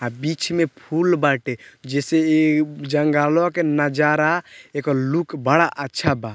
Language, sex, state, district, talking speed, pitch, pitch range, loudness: Bhojpuri, male, Bihar, Muzaffarpur, 140 wpm, 150 Hz, 140-165 Hz, -20 LUFS